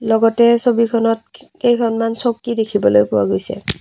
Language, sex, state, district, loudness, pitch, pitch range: Assamese, female, Assam, Kamrup Metropolitan, -16 LUFS, 230 Hz, 220-235 Hz